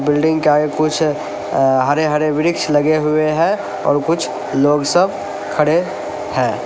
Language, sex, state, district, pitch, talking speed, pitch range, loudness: Hindi, male, Uttar Pradesh, Lalitpur, 150 Hz, 155 wpm, 145-155 Hz, -16 LUFS